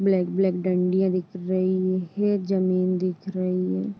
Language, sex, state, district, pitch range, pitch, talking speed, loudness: Hindi, female, Uttar Pradesh, Deoria, 180-190 Hz, 185 Hz, 150 wpm, -24 LUFS